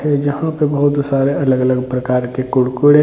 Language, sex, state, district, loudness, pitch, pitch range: Hindi, male, Bihar, Jamui, -16 LUFS, 140 Hz, 130-145 Hz